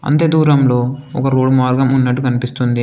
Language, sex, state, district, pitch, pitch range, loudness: Telugu, male, Telangana, Komaram Bheem, 130 Hz, 125-140 Hz, -14 LUFS